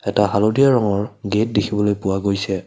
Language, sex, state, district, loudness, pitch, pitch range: Assamese, male, Assam, Kamrup Metropolitan, -18 LUFS, 105 Hz, 100-105 Hz